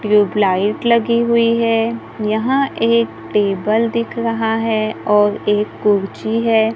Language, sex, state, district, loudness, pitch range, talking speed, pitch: Hindi, female, Maharashtra, Gondia, -16 LUFS, 210-230 Hz, 125 wpm, 225 Hz